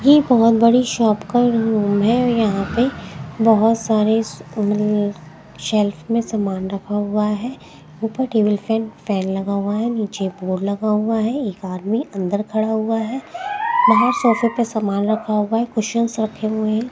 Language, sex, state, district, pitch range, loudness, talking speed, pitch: Hindi, female, Haryana, Jhajjar, 205-230 Hz, -19 LUFS, 170 wpm, 220 Hz